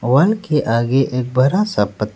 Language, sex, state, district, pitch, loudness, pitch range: Hindi, male, Arunachal Pradesh, Lower Dibang Valley, 135 Hz, -17 LUFS, 125-175 Hz